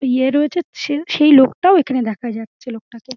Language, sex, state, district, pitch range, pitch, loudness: Bengali, female, West Bengal, Dakshin Dinajpur, 240-295 Hz, 260 Hz, -15 LUFS